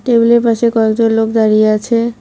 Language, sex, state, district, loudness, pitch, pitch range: Bengali, female, West Bengal, Cooch Behar, -12 LUFS, 230 Hz, 220-235 Hz